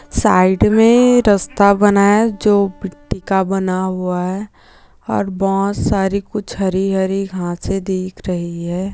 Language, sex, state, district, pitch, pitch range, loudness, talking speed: Hindi, female, Andhra Pradesh, Chittoor, 195 Hz, 185-200 Hz, -16 LUFS, 135 wpm